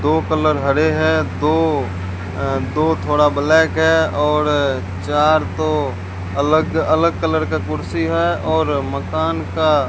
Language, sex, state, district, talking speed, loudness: Hindi, male, Rajasthan, Bikaner, 140 wpm, -17 LUFS